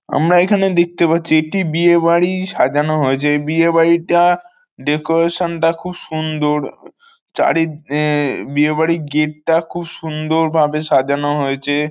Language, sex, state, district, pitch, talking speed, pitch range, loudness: Bengali, male, West Bengal, North 24 Parganas, 160 Hz, 135 wpm, 150-170 Hz, -16 LUFS